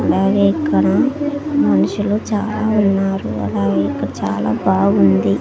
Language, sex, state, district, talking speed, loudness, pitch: Telugu, female, Andhra Pradesh, Sri Satya Sai, 100 wpm, -16 LUFS, 195 Hz